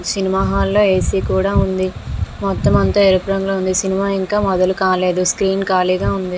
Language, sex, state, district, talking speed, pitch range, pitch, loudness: Telugu, female, Andhra Pradesh, Visakhapatnam, 170 wpm, 180-195 Hz, 190 Hz, -16 LUFS